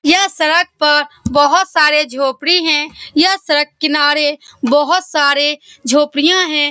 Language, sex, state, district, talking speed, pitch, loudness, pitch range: Hindi, female, Bihar, Saran, 125 wpm, 300 Hz, -13 LUFS, 290-340 Hz